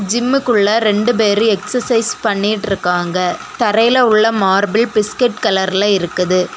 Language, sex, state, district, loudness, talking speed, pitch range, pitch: Tamil, female, Tamil Nadu, Kanyakumari, -14 LUFS, 110 wpm, 195-230 Hz, 210 Hz